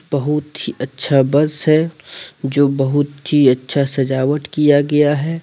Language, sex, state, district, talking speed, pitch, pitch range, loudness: Hindi, male, Jharkhand, Deoghar, 145 wpm, 145 Hz, 135-150 Hz, -16 LUFS